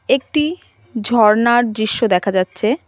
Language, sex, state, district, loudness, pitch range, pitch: Bengali, female, West Bengal, Cooch Behar, -16 LUFS, 215-260 Hz, 230 Hz